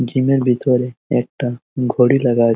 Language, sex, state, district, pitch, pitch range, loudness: Bengali, male, West Bengal, Jhargram, 125 Hz, 120-130 Hz, -17 LUFS